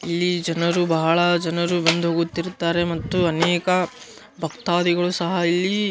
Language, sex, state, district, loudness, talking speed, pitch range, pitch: Kannada, male, Karnataka, Gulbarga, -21 LUFS, 120 wpm, 170-175 Hz, 170 Hz